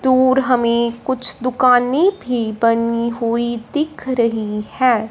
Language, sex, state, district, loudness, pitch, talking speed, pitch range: Hindi, male, Punjab, Fazilka, -17 LUFS, 240 Hz, 120 wpm, 230-260 Hz